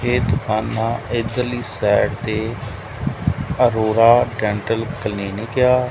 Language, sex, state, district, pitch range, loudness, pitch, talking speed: Punjabi, male, Punjab, Kapurthala, 110-120 Hz, -19 LUFS, 115 Hz, 90 wpm